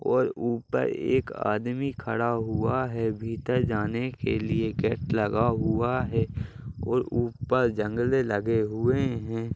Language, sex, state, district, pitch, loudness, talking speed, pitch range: Hindi, male, Uttar Pradesh, Ghazipur, 115 Hz, -27 LUFS, 125 wpm, 110-125 Hz